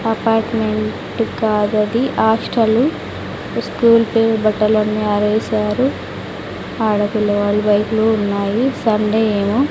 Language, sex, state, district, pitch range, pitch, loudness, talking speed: Telugu, female, Andhra Pradesh, Sri Satya Sai, 210-225 Hz, 220 Hz, -16 LUFS, 80 wpm